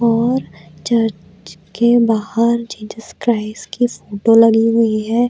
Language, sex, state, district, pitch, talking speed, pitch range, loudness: Hindi, female, Chhattisgarh, Bastar, 225 Hz, 125 wpm, 210-235 Hz, -15 LUFS